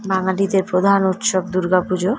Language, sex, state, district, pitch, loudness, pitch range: Bengali, female, West Bengal, North 24 Parganas, 190 Hz, -18 LUFS, 185-195 Hz